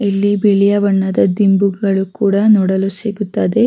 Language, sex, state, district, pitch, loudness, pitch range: Kannada, female, Karnataka, Raichur, 200 Hz, -14 LUFS, 195-205 Hz